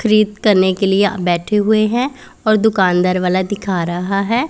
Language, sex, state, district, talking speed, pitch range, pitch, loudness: Hindi, female, Punjab, Pathankot, 160 wpm, 185-215 Hz, 200 Hz, -15 LUFS